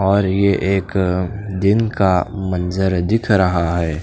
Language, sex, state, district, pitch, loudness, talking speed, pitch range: Hindi, male, Chandigarh, Chandigarh, 95 Hz, -17 LUFS, 135 wpm, 90-100 Hz